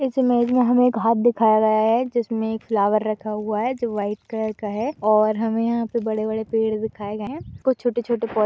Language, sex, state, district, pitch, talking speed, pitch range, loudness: Hindi, female, Uttar Pradesh, Budaun, 225 Hz, 235 wpm, 215-240 Hz, -21 LUFS